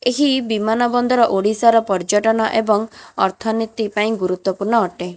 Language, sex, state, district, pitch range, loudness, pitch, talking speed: Odia, female, Odisha, Khordha, 205-230 Hz, -18 LUFS, 220 Hz, 130 wpm